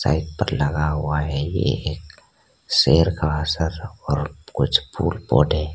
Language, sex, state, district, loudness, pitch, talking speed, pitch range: Hindi, male, Arunachal Pradesh, Lower Dibang Valley, -21 LUFS, 75 Hz, 145 wpm, 75-80 Hz